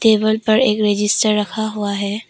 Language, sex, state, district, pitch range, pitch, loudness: Hindi, female, Arunachal Pradesh, Papum Pare, 205-220 Hz, 215 Hz, -17 LUFS